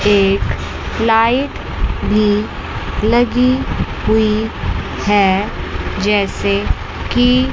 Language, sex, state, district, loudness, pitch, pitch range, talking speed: Hindi, female, Chandigarh, Chandigarh, -16 LUFS, 210 Hz, 195-235 Hz, 65 wpm